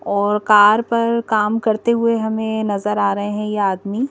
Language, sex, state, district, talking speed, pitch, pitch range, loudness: Hindi, female, Madhya Pradesh, Bhopal, 190 wpm, 215 Hz, 205-225 Hz, -17 LUFS